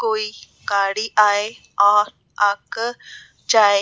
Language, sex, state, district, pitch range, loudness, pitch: Hindi, female, Rajasthan, Jaipur, 205-215 Hz, -19 LUFS, 210 Hz